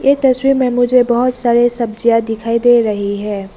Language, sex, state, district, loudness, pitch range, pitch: Hindi, female, Arunachal Pradesh, Lower Dibang Valley, -14 LUFS, 225-250 Hz, 240 Hz